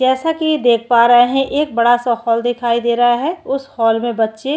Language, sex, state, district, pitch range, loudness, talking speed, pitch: Hindi, female, Chhattisgarh, Kabirdham, 235-270 Hz, -15 LUFS, 250 wpm, 240 Hz